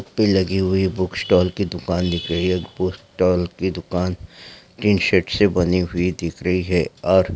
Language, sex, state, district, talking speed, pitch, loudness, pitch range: Hindi, male, West Bengal, Malda, 185 wpm, 90 Hz, -20 LUFS, 90-95 Hz